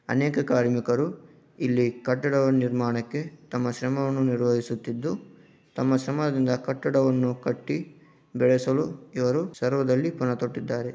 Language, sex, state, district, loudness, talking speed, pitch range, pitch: Kannada, male, Karnataka, Dharwad, -26 LUFS, 90 wpm, 125-145 Hz, 130 Hz